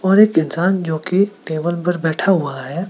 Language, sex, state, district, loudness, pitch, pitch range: Hindi, male, Meghalaya, West Garo Hills, -17 LUFS, 175 Hz, 160-190 Hz